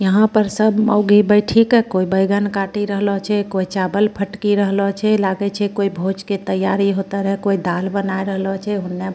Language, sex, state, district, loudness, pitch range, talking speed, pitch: Angika, female, Bihar, Bhagalpur, -17 LUFS, 195-205 Hz, 205 wpm, 200 Hz